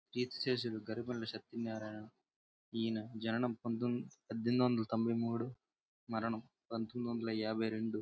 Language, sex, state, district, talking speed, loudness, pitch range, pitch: Telugu, male, Andhra Pradesh, Srikakulam, 45 wpm, -39 LUFS, 110-120 Hz, 115 Hz